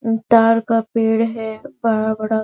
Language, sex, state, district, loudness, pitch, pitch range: Hindi, female, Chhattisgarh, Raigarh, -17 LUFS, 225 Hz, 220-230 Hz